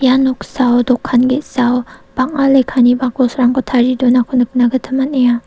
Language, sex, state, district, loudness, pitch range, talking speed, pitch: Garo, female, Meghalaya, South Garo Hills, -13 LUFS, 245-260 Hz, 130 wpm, 255 Hz